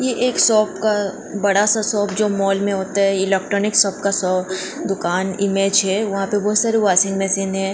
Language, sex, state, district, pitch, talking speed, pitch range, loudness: Hindi, female, Goa, North and South Goa, 200 Hz, 200 wpm, 195-210 Hz, -18 LUFS